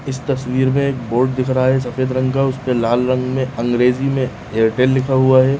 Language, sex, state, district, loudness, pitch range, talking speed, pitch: Hindi, male, Bihar, Jahanabad, -17 LUFS, 125-130 Hz, 225 wpm, 130 Hz